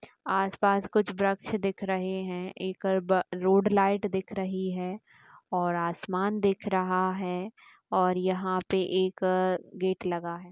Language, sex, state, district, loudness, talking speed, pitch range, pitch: Hindi, female, Uttar Pradesh, Gorakhpur, -29 LUFS, 135 wpm, 185-195 Hz, 190 Hz